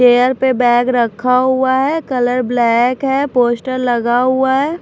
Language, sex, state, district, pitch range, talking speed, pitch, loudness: Hindi, female, Maharashtra, Washim, 245-265 Hz, 160 wpm, 250 Hz, -14 LUFS